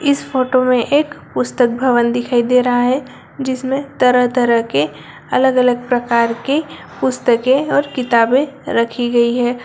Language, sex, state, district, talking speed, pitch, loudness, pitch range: Hindi, male, Bihar, Darbhanga, 150 wpm, 250 Hz, -16 LUFS, 235-265 Hz